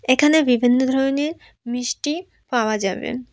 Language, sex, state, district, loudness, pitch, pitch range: Bengali, female, West Bengal, Alipurduar, -20 LUFS, 255 Hz, 245-290 Hz